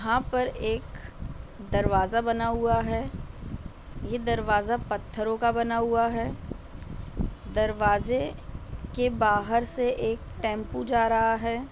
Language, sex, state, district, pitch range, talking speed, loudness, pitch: Hindi, female, Maharashtra, Nagpur, 220-235 Hz, 120 wpm, -27 LUFS, 230 Hz